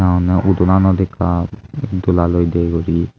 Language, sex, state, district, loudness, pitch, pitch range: Chakma, male, Tripura, Unakoti, -16 LUFS, 90 Hz, 85-95 Hz